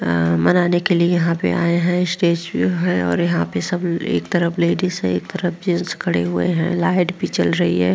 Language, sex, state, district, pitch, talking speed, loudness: Hindi, female, Uttar Pradesh, Muzaffarnagar, 170 Hz, 225 wpm, -19 LUFS